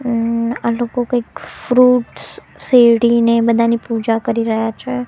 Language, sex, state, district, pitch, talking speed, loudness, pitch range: Gujarati, female, Gujarat, Gandhinagar, 235 Hz, 140 wpm, -15 LUFS, 230-240 Hz